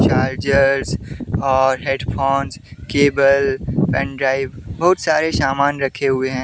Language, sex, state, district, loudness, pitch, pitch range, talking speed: Hindi, male, Jharkhand, Deoghar, -18 LUFS, 135 Hz, 130-140 Hz, 100 wpm